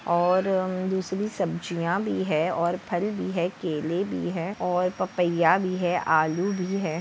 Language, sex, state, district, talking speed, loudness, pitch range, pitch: Hindi, female, Maharashtra, Dhule, 170 wpm, -26 LUFS, 170-190 Hz, 180 Hz